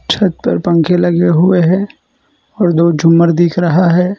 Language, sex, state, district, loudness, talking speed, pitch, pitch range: Hindi, male, Gujarat, Valsad, -11 LUFS, 170 wpm, 175 Hz, 170-185 Hz